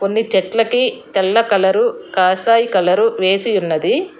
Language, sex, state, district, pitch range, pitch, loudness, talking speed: Telugu, female, Telangana, Hyderabad, 190-230 Hz, 200 Hz, -15 LUFS, 130 wpm